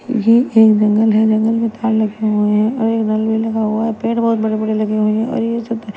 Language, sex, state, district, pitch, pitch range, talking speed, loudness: Hindi, female, Punjab, Kapurthala, 220 Hz, 215-230 Hz, 260 wpm, -15 LUFS